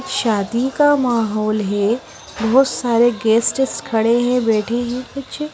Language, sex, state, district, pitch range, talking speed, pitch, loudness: Hindi, female, Bihar, West Champaran, 220-265 Hz, 130 wpm, 240 Hz, -17 LUFS